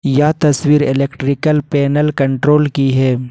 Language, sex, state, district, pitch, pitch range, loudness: Hindi, male, Jharkhand, Ranchi, 145 Hz, 135-150 Hz, -14 LUFS